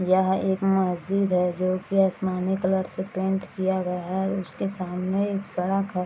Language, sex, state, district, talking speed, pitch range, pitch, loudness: Hindi, female, Bihar, Madhepura, 180 wpm, 185-195 Hz, 190 Hz, -25 LUFS